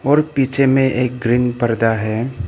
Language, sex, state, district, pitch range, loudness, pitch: Hindi, male, Arunachal Pradesh, Papum Pare, 115-135 Hz, -17 LUFS, 125 Hz